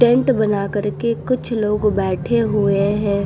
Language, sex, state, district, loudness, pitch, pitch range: Hindi, female, Uttar Pradesh, Muzaffarnagar, -18 LUFS, 210 Hz, 200-235 Hz